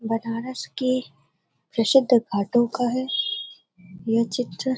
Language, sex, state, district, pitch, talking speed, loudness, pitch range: Hindi, female, Uttar Pradesh, Varanasi, 230 Hz, 100 wpm, -23 LUFS, 200-255 Hz